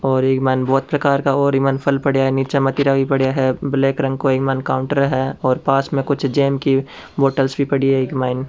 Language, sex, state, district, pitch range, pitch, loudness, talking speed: Rajasthani, male, Rajasthan, Churu, 135-140 Hz, 135 Hz, -17 LUFS, 255 wpm